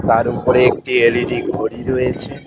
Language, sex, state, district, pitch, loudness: Bengali, male, West Bengal, Cooch Behar, 135 Hz, -16 LUFS